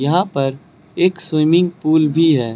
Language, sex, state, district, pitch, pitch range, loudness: Hindi, male, Uttar Pradesh, Lucknow, 160 Hz, 145-175 Hz, -16 LUFS